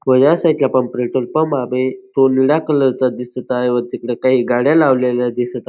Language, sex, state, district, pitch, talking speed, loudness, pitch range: Marathi, male, Maharashtra, Dhule, 130 Hz, 170 wpm, -16 LUFS, 125-135 Hz